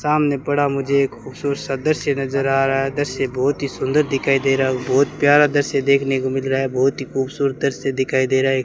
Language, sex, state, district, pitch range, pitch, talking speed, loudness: Hindi, male, Rajasthan, Bikaner, 135-140 Hz, 135 Hz, 240 wpm, -19 LUFS